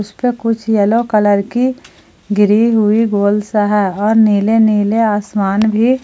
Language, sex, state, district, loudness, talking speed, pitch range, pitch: Hindi, female, Jharkhand, Palamu, -13 LUFS, 160 wpm, 205-225 Hz, 215 Hz